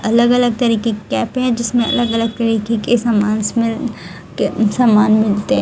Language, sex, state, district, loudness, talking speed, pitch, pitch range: Hindi, female, Haryana, Jhajjar, -16 LUFS, 170 wpm, 230 Hz, 215-240 Hz